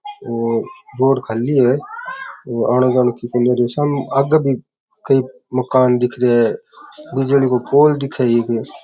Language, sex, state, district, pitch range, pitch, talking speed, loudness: Rajasthani, male, Rajasthan, Churu, 120-145 Hz, 130 Hz, 135 wpm, -17 LUFS